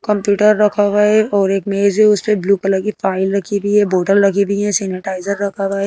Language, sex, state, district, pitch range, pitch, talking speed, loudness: Hindi, female, Madhya Pradesh, Bhopal, 195-210 Hz, 200 Hz, 265 wpm, -15 LUFS